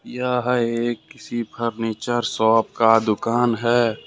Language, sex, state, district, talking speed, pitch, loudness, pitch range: Hindi, male, Jharkhand, Ranchi, 120 wpm, 115 Hz, -21 LUFS, 115-120 Hz